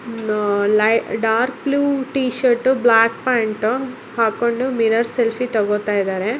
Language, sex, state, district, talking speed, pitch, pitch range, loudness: Kannada, female, Karnataka, Bellary, 120 wpm, 230 Hz, 215-255 Hz, -18 LUFS